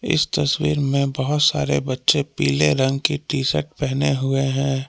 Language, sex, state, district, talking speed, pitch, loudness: Hindi, male, Jharkhand, Palamu, 170 wpm, 135 Hz, -20 LUFS